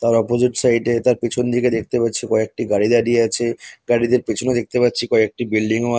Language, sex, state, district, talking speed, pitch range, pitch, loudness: Bengali, male, West Bengal, North 24 Parganas, 200 wpm, 115-120 Hz, 120 Hz, -18 LUFS